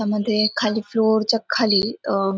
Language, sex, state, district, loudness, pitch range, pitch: Marathi, female, Maharashtra, Aurangabad, -20 LUFS, 210-220 Hz, 215 Hz